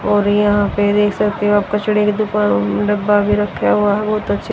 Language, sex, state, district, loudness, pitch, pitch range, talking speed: Hindi, female, Haryana, Rohtak, -15 LUFS, 205 Hz, 205-210 Hz, 225 wpm